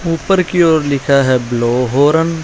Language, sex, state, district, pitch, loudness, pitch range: Hindi, male, Punjab, Fazilka, 145 Hz, -13 LUFS, 130-165 Hz